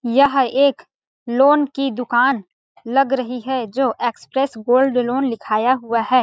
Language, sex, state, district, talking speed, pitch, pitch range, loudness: Hindi, female, Chhattisgarh, Balrampur, 145 wpm, 255 Hz, 240-270 Hz, -18 LUFS